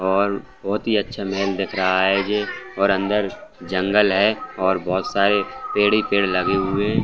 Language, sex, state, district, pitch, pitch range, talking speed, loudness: Hindi, male, Bihar, Saran, 100 Hz, 95-105 Hz, 185 wpm, -20 LUFS